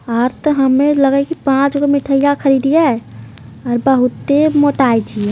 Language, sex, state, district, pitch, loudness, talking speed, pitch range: Hindi, female, Bihar, Jamui, 275 Hz, -14 LUFS, 170 wpm, 240-285 Hz